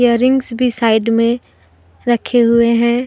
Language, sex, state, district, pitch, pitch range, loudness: Hindi, female, Jharkhand, Deoghar, 235 Hz, 230-245 Hz, -14 LUFS